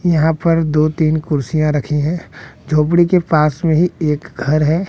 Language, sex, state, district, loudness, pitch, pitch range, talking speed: Hindi, male, Bihar, West Champaran, -16 LUFS, 155 Hz, 150-165 Hz, 185 wpm